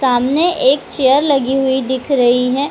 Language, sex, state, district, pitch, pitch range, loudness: Hindi, female, Bihar, Gaya, 265 Hz, 260-280 Hz, -14 LUFS